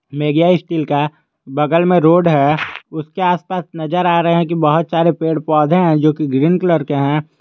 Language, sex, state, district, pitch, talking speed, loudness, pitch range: Hindi, male, Jharkhand, Garhwa, 160 Hz, 210 wpm, -15 LUFS, 150-170 Hz